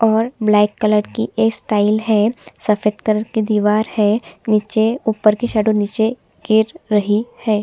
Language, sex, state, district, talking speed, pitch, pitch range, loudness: Hindi, female, Chhattisgarh, Sukma, 150 wpm, 215 Hz, 210-220 Hz, -17 LUFS